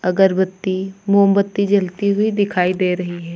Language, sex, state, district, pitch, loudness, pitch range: Hindi, female, Uttar Pradesh, Lucknow, 190 Hz, -17 LUFS, 185-200 Hz